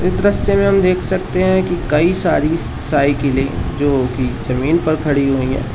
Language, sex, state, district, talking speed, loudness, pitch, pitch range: Hindi, male, Uttar Pradesh, Shamli, 175 wpm, -15 LUFS, 150 Hz, 135-180 Hz